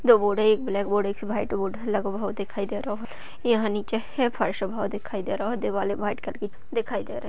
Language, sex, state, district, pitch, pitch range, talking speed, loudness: Hindi, female, Uttar Pradesh, Budaun, 210 Hz, 200-225 Hz, 240 wpm, -27 LUFS